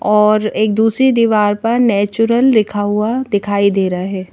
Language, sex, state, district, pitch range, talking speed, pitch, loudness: Hindi, female, Madhya Pradesh, Bhopal, 205-225 Hz, 165 wpm, 210 Hz, -14 LUFS